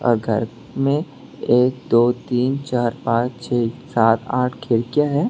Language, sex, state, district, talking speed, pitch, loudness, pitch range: Hindi, male, Tripura, West Tripura, 145 wpm, 120 Hz, -20 LUFS, 115-130 Hz